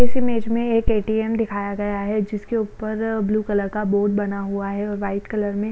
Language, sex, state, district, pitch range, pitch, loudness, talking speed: Hindi, female, Maharashtra, Chandrapur, 200-220 Hz, 210 Hz, -23 LUFS, 210 wpm